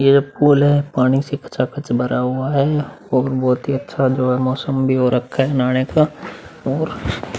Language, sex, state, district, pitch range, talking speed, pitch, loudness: Hindi, male, Uttar Pradesh, Muzaffarnagar, 130-145 Hz, 180 wpm, 135 Hz, -18 LUFS